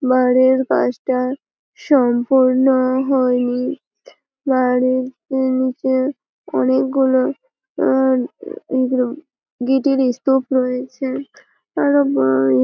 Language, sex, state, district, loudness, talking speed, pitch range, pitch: Bengali, female, West Bengal, Malda, -17 LUFS, 65 wpm, 250-265 Hz, 260 Hz